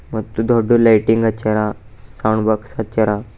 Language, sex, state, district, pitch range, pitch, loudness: Kannada, male, Karnataka, Bidar, 105-115 Hz, 110 Hz, -17 LUFS